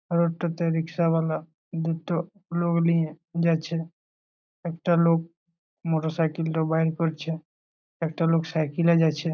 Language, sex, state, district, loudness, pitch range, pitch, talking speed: Bengali, male, West Bengal, Malda, -26 LUFS, 160-170 Hz, 165 Hz, 120 wpm